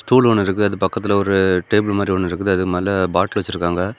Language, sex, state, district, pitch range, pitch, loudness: Tamil, male, Tamil Nadu, Kanyakumari, 90-105 Hz, 95 Hz, -18 LUFS